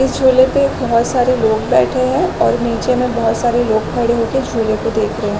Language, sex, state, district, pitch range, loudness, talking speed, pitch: Hindi, female, Chhattisgarh, Raigarh, 225-255 Hz, -15 LUFS, 245 wpm, 235 Hz